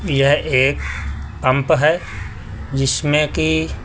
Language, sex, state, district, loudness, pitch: Hindi, male, Delhi, New Delhi, -17 LUFS, 105 Hz